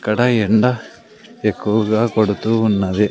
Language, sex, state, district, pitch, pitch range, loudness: Telugu, male, Andhra Pradesh, Sri Satya Sai, 110 Hz, 105-115 Hz, -17 LUFS